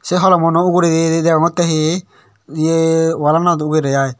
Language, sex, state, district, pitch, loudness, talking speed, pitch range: Chakma, male, Tripura, Dhalai, 165 Hz, -14 LUFS, 155 wpm, 155-175 Hz